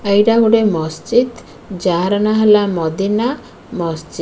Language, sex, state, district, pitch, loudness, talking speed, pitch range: Odia, female, Odisha, Khordha, 205 Hz, -15 LUFS, 130 wpm, 180-225 Hz